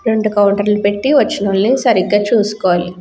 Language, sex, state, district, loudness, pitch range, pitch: Telugu, female, Andhra Pradesh, Guntur, -14 LUFS, 200-220 Hz, 205 Hz